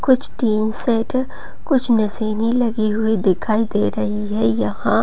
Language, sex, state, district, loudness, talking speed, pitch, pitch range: Hindi, female, Bihar, Gopalganj, -19 LUFS, 130 wpm, 220 Hz, 190-235 Hz